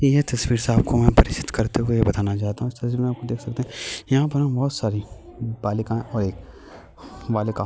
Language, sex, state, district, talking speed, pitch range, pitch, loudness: Hindi, male, Chhattisgarh, Kabirdham, 225 wpm, 105-125 Hz, 115 Hz, -23 LUFS